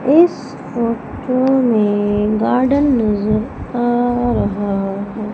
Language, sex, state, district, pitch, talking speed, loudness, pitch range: Hindi, female, Madhya Pradesh, Umaria, 235 Hz, 90 wpm, -16 LUFS, 210-255 Hz